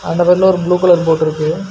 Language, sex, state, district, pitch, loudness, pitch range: Tamil, male, Karnataka, Bangalore, 175 Hz, -13 LUFS, 160-180 Hz